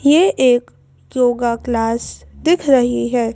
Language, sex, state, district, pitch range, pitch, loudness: Hindi, female, Madhya Pradesh, Bhopal, 235-270 Hz, 245 Hz, -16 LUFS